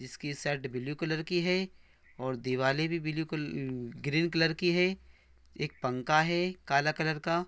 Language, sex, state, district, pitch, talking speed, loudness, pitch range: Hindi, male, Andhra Pradesh, Anantapur, 155 Hz, 185 wpm, -31 LUFS, 130-170 Hz